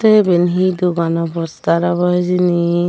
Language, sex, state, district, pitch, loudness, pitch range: Chakma, female, Tripura, Dhalai, 175 Hz, -15 LUFS, 170-180 Hz